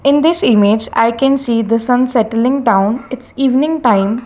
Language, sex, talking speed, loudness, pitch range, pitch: English, female, 185 wpm, -13 LUFS, 225-270 Hz, 240 Hz